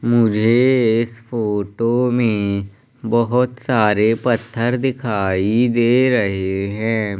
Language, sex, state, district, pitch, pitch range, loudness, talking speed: Hindi, male, Madhya Pradesh, Umaria, 115 Hz, 105-120 Hz, -18 LUFS, 90 wpm